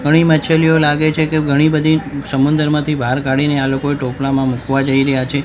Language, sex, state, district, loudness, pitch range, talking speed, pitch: Gujarati, male, Gujarat, Gandhinagar, -15 LUFS, 135-155 Hz, 185 wpm, 145 Hz